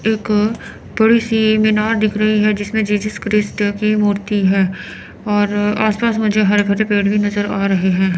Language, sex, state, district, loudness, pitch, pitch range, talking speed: Hindi, female, Chandigarh, Chandigarh, -16 LUFS, 210 Hz, 205-215 Hz, 185 wpm